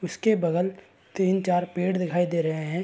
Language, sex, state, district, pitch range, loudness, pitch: Hindi, male, Uttar Pradesh, Varanasi, 175-185 Hz, -25 LUFS, 180 Hz